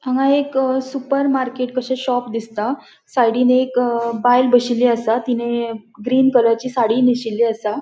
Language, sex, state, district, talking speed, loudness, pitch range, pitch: Konkani, female, Goa, North and South Goa, 140 wpm, -18 LUFS, 235-260 Hz, 245 Hz